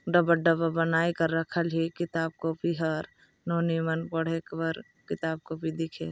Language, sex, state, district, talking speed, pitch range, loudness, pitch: Chhattisgarhi, female, Chhattisgarh, Balrampur, 155 wpm, 160-170 Hz, -29 LUFS, 165 Hz